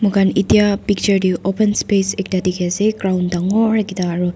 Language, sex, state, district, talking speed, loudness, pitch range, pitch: Nagamese, female, Nagaland, Dimapur, 180 wpm, -17 LUFS, 185-205 Hz, 195 Hz